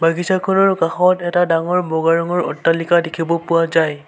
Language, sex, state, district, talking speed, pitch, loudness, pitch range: Assamese, male, Assam, Sonitpur, 145 wpm, 170 Hz, -16 LUFS, 165-180 Hz